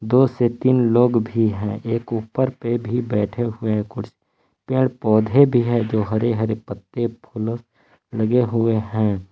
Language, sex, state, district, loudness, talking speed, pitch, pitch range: Hindi, male, Jharkhand, Palamu, -20 LUFS, 160 wpm, 115 Hz, 110-120 Hz